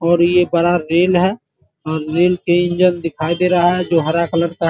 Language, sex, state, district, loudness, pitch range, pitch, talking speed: Hindi, male, Bihar, Muzaffarpur, -16 LUFS, 165-180 Hz, 175 Hz, 230 wpm